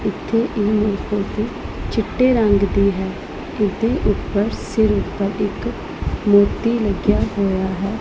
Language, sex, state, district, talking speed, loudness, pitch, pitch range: Punjabi, female, Punjab, Pathankot, 110 wpm, -19 LUFS, 205 Hz, 200-220 Hz